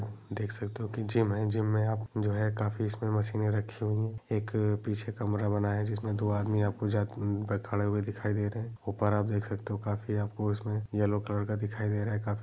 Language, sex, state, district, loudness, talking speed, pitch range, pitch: Hindi, male, Jharkhand, Sahebganj, -32 LUFS, 230 wpm, 105-110 Hz, 105 Hz